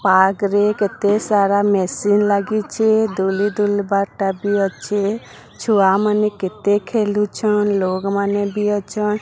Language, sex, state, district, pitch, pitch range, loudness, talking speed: Odia, female, Odisha, Sambalpur, 205 Hz, 200-210 Hz, -18 LUFS, 125 wpm